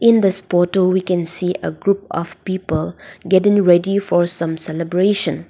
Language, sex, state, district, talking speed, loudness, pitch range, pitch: English, female, Nagaland, Dimapur, 165 wpm, -17 LUFS, 170-195 Hz, 180 Hz